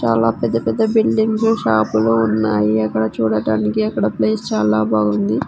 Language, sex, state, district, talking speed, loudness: Telugu, female, Andhra Pradesh, Sri Satya Sai, 130 wpm, -17 LUFS